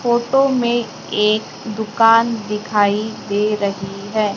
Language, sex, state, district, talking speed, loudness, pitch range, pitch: Hindi, female, Maharashtra, Gondia, 110 wpm, -18 LUFS, 210-230 Hz, 215 Hz